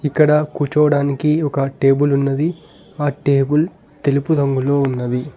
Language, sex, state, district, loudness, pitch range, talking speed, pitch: Telugu, male, Telangana, Hyderabad, -17 LUFS, 140-150 Hz, 110 wpm, 145 Hz